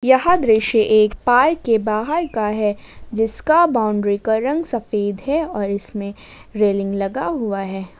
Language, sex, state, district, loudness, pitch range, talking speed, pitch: Hindi, female, Jharkhand, Ranchi, -18 LUFS, 205-260 Hz, 150 wpm, 220 Hz